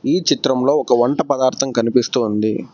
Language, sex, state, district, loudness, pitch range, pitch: Telugu, male, Telangana, Hyderabad, -17 LUFS, 115-135 Hz, 125 Hz